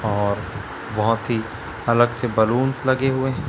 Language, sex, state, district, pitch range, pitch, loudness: Hindi, male, Chhattisgarh, Raipur, 110-130 Hz, 115 Hz, -21 LUFS